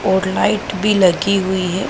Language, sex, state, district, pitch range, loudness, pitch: Hindi, female, Punjab, Pathankot, 185-200 Hz, -16 LUFS, 190 Hz